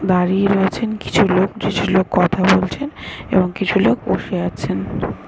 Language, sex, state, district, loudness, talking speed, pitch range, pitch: Bengali, male, West Bengal, North 24 Parganas, -18 LUFS, 125 wpm, 185-200 Hz, 190 Hz